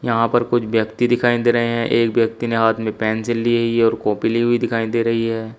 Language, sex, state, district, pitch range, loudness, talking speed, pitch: Hindi, male, Uttar Pradesh, Shamli, 115-120 Hz, -18 LUFS, 270 wpm, 115 Hz